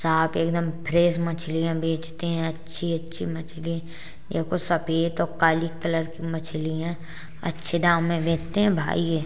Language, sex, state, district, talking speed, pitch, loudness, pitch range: Hindi, male, Uttar Pradesh, Jalaun, 175 wpm, 165 Hz, -26 LUFS, 160-170 Hz